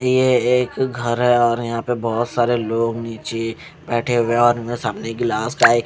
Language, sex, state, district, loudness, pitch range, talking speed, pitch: Hindi, male, Punjab, Fazilka, -19 LUFS, 115-120 Hz, 215 wpm, 120 Hz